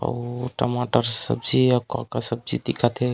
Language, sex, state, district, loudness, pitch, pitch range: Chhattisgarhi, male, Chhattisgarh, Raigarh, -22 LUFS, 125 Hz, 120-125 Hz